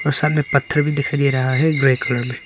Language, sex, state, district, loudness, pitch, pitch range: Hindi, male, Arunachal Pradesh, Papum Pare, -18 LUFS, 140 Hz, 130-150 Hz